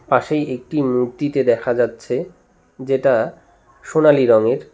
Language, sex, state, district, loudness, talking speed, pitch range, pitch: Bengali, male, West Bengal, Cooch Behar, -18 LUFS, 100 wpm, 130-150 Hz, 135 Hz